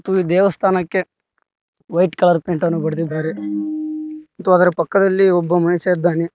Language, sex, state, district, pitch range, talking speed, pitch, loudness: Kannada, male, Karnataka, Koppal, 170-195 Hz, 125 wpm, 180 Hz, -17 LUFS